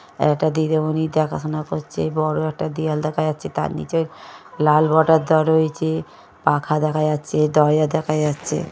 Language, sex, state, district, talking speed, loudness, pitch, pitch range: Bengali, male, West Bengal, Paschim Medinipur, 145 wpm, -20 LUFS, 155 Hz, 150-160 Hz